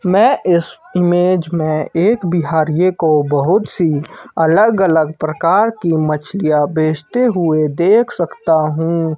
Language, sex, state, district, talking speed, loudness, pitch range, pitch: Hindi, male, Himachal Pradesh, Shimla, 125 wpm, -15 LUFS, 155-185 Hz, 165 Hz